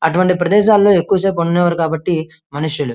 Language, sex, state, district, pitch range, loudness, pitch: Telugu, male, Andhra Pradesh, Krishna, 160-185 Hz, -14 LUFS, 170 Hz